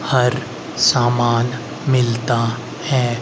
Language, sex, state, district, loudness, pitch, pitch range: Hindi, male, Haryana, Rohtak, -18 LUFS, 120 Hz, 120-130 Hz